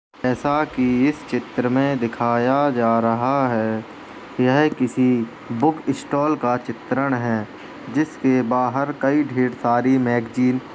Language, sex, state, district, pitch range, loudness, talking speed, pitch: Hindi, female, Uttar Pradesh, Jalaun, 120-140 Hz, -20 LUFS, 130 wpm, 125 Hz